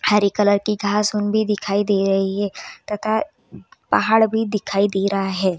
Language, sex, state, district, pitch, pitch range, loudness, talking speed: Hindi, female, Bihar, Muzaffarpur, 205 Hz, 195-210 Hz, -19 LUFS, 185 wpm